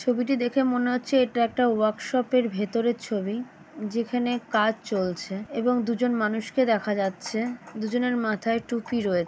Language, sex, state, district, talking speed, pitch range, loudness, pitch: Bengali, female, West Bengal, Jalpaiguri, 140 wpm, 215-245 Hz, -26 LUFS, 235 Hz